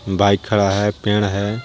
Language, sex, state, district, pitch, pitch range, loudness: Hindi, male, Jharkhand, Garhwa, 100 Hz, 100-105 Hz, -18 LUFS